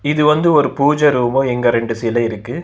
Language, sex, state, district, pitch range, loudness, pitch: Tamil, male, Tamil Nadu, Chennai, 120-150 Hz, -15 LUFS, 135 Hz